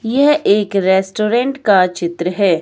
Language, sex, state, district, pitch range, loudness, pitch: Hindi, male, Himachal Pradesh, Shimla, 185-230 Hz, -15 LUFS, 200 Hz